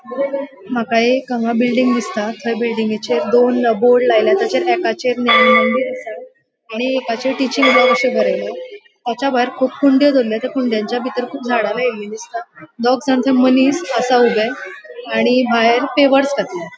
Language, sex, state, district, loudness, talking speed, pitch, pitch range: Konkani, female, Goa, North and South Goa, -15 LUFS, 120 wpm, 245 Hz, 230-265 Hz